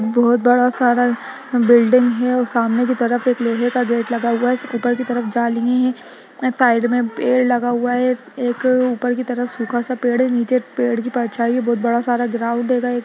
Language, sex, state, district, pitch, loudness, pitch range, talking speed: Hindi, female, Bihar, Gaya, 245 Hz, -18 LUFS, 235-250 Hz, 210 wpm